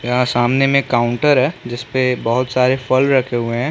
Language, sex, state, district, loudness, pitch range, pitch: Hindi, male, Chhattisgarh, Bilaspur, -16 LUFS, 120-130 Hz, 125 Hz